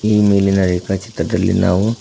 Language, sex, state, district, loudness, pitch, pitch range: Kannada, male, Karnataka, Koppal, -16 LUFS, 95 Hz, 90-105 Hz